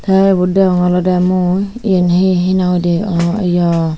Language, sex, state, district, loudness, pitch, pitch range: Chakma, female, Tripura, Unakoti, -13 LUFS, 180 Hz, 175-190 Hz